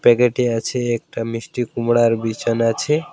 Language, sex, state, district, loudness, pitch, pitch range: Bengali, male, West Bengal, Alipurduar, -19 LUFS, 115 Hz, 115-125 Hz